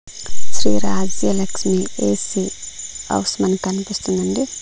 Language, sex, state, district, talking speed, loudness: Telugu, female, Andhra Pradesh, Manyam, 65 wpm, -20 LUFS